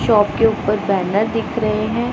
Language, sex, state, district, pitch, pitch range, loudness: Hindi, male, Punjab, Pathankot, 215 Hz, 205-225 Hz, -18 LUFS